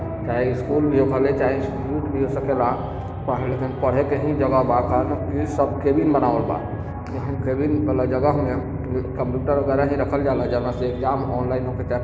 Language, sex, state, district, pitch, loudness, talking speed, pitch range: Bhojpuri, male, Bihar, East Champaran, 130 Hz, -22 LUFS, 155 wpm, 125-140 Hz